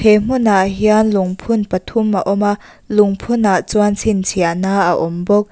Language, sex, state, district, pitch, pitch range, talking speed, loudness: Mizo, female, Mizoram, Aizawl, 205 Hz, 190-215 Hz, 165 wpm, -15 LUFS